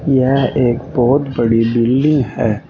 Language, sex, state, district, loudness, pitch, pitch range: Hindi, male, Uttar Pradesh, Saharanpur, -15 LUFS, 125 Hz, 115-135 Hz